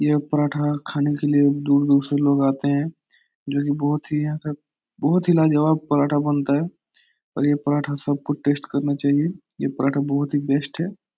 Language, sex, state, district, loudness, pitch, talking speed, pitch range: Hindi, male, Bihar, Jahanabad, -21 LUFS, 145 Hz, 190 wpm, 140-150 Hz